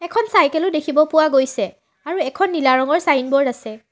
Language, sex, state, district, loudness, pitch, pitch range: Assamese, female, Assam, Sonitpur, -17 LUFS, 295 Hz, 260-320 Hz